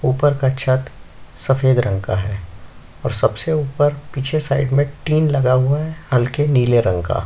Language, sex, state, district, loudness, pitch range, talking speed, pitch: Hindi, male, Chhattisgarh, Sukma, -18 LUFS, 125-145 Hz, 155 wpm, 135 Hz